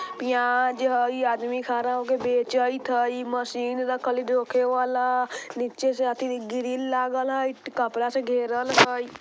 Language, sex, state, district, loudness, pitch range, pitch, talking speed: Bajjika, male, Bihar, Vaishali, -25 LUFS, 245-255 Hz, 250 Hz, 155 wpm